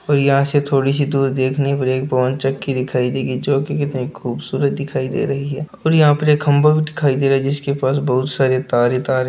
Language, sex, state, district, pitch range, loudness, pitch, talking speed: Hindi, male, Bihar, Samastipur, 130-145 Hz, -17 LUFS, 135 Hz, 245 wpm